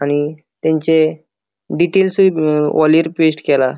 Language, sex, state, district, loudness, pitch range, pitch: Konkani, male, Goa, North and South Goa, -15 LUFS, 150-165 Hz, 155 Hz